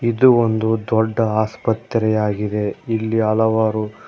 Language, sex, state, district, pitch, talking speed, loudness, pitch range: Kannada, male, Karnataka, Koppal, 110 Hz, 90 wpm, -18 LUFS, 110-115 Hz